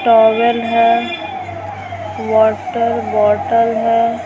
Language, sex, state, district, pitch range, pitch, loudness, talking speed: Hindi, female, Bihar, Patna, 220-230 Hz, 230 Hz, -14 LUFS, 70 wpm